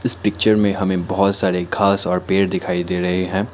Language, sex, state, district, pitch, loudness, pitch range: Hindi, male, Assam, Kamrup Metropolitan, 95 Hz, -19 LUFS, 90-100 Hz